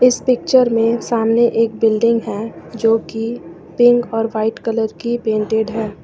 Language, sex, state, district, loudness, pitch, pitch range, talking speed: Hindi, female, Jharkhand, Ranchi, -16 LUFS, 225 Hz, 225-235 Hz, 160 wpm